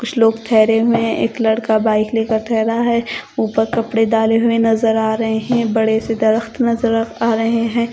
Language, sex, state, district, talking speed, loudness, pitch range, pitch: Hindi, female, Odisha, Khordha, 195 wpm, -16 LUFS, 220-230 Hz, 225 Hz